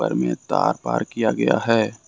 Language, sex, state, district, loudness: Hindi, male, Jharkhand, Ranchi, -21 LUFS